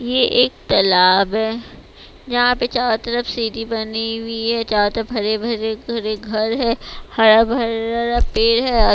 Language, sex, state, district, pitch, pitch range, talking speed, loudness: Hindi, female, Bihar, West Champaran, 225 Hz, 220-240 Hz, 160 wpm, -18 LUFS